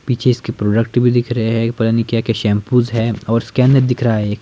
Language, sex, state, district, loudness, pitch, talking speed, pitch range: Hindi, male, Himachal Pradesh, Shimla, -16 LUFS, 115 Hz, 245 wpm, 115-125 Hz